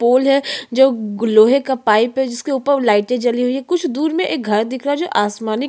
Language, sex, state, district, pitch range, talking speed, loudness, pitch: Hindi, female, Chhattisgarh, Sukma, 225-275 Hz, 255 wpm, -16 LUFS, 260 Hz